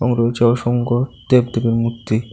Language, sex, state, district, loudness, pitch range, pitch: Bengali, male, Tripura, South Tripura, -17 LUFS, 115-120 Hz, 120 Hz